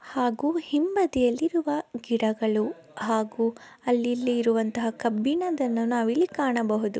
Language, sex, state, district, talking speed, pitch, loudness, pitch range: Kannada, female, Karnataka, Bellary, 75 wpm, 245 Hz, -26 LUFS, 230-295 Hz